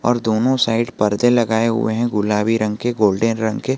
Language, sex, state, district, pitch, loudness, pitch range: Hindi, male, Jharkhand, Garhwa, 115 Hz, -18 LUFS, 105-120 Hz